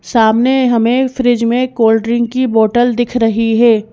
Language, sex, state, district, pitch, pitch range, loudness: Hindi, female, Madhya Pradesh, Bhopal, 235 Hz, 225-245 Hz, -12 LUFS